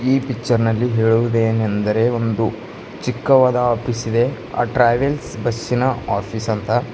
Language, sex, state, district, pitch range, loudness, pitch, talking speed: Kannada, male, Karnataka, Bidar, 115-125 Hz, -18 LUFS, 120 Hz, 110 wpm